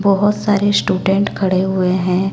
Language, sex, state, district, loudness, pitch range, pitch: Hindi, male, Chhattisgarh, Raipur, -16 LUFS, 185-205 Hz, 195 Hz